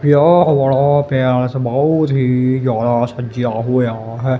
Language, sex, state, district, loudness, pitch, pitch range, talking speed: Punjabi, male, Punjab, Kapurthala, -15 LUFS, 130 Hz, 120-140 Hz, 125 wpm